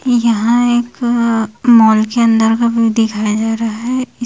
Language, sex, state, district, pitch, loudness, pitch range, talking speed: Hindi, female, Bihar, Jamui, 230 Hz, -13 LUFS, 225-240 Hz, 155 wpm